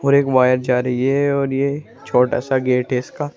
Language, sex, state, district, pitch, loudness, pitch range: Hindi, male, Uttar Pradesh, Saharanpur, 130 Hz, -18 LUFS, 125-140 Hz